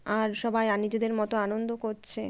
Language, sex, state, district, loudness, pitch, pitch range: Bengali, female, West Bengal, Kolkata, -29 LUFS, 220 Hz, 215-225 Hz